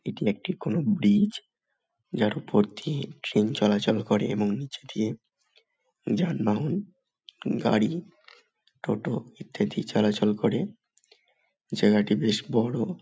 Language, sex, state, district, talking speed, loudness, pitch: Bengali, male, West Bengal, Malda, 110 wpm, -27 LUFS, 110 Hz